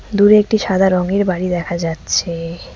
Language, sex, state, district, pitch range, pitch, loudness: Bengali, female, West Bengal, Cooch Behar, 170-205 Hz, 185 Hz, -16 LUFS